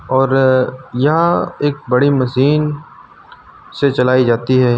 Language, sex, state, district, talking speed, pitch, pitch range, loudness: Hindi, male, Uttar Pradesh, Lucknow, 115 wpm, 135 Hz, 125-145 Hz, -14 LUFS